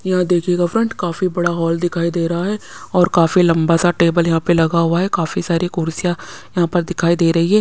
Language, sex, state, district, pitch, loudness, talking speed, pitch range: Hindi, female, Punjab, Pathankot, 175 Hz, -17 LUFS, 230 wpm, 170-180 Hz